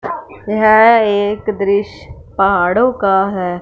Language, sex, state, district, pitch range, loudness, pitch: Hindi, female, Punjab, Fazilka, 195-215 Hz, -13 LUFS, 205 Hz